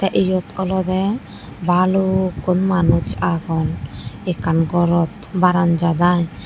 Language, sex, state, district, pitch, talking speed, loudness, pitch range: Chakma, female, Tripura, Dhalai, 180 Hz, 95 wpm, -18 LUFS, 165-185 Hz